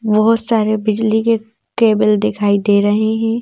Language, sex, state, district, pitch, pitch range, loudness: Hindi, female, Madhya Pradesh, Bhopal, 220 Hz, 215-225 Hz, -15 LUFS